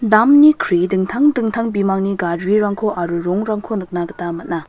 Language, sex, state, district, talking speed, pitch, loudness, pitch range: Garo, female, Meghalaya, West Garo Hills, 140 wpm, 200 Hz, -16 LUFS, 175-220 Hz